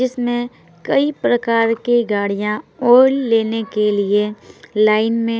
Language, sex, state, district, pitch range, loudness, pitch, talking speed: Hindi, female, Bihar, Patna, 210-240 Hz, -17 LUFS, 230 Hz, 120 wpm